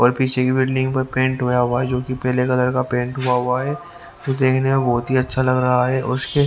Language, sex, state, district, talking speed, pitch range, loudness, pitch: Hindi, male, Haryana, Rohtak, 270 wpm, 125-130 Hz, -19 LUFS, 130 Hz